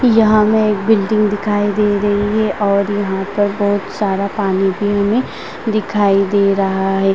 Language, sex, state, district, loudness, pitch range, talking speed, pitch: Hindi, female, Bihar, Vaishali, -15 LUFS, 200-210 Hz, 175 wpm, 205 Hz